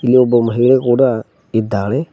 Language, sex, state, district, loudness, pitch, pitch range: Kannada, male, Karnataka, Koppal, -14 LUFS, 120 Hz, 115-130 Hz